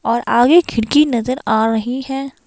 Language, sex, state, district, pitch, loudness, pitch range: Hindi, female, Himachal Pradesh, Shimla, 245 Hz, -15 LUFS, 230-270 Hz